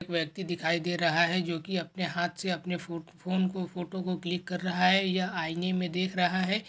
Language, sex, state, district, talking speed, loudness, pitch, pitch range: Hindi, male, Bihar, Lakhisarai, 225 wpm, -30 LUFS, 180 Hz, 170-185 Hz